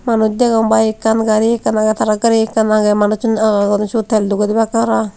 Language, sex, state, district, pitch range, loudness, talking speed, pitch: Chakma, female, Tripura, Unakoti, 215-225 Hz, -14 LUFS, 210 wpm, 220 Hz